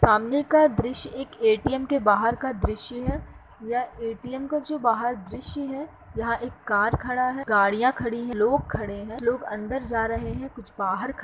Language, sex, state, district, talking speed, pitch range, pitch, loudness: Hindi, female, Uttar Pradesh, Muzaffarnagar, 190 wpm, 225-265 Hz, 240 Hz, -25 LUFS